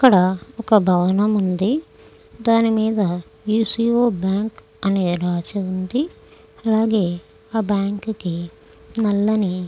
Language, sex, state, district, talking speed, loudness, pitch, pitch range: Telugu, female, Andhra Pradesh, Krishna, 100 wpm, -20 LUFS, 205 Hz, 185-225 Hz